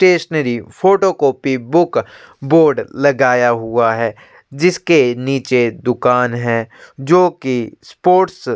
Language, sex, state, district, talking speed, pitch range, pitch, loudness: Hindi, male, Chhattisgarh, Korba, 110 wpm, 120-170 Hz, 135 Hz, -15 LUFS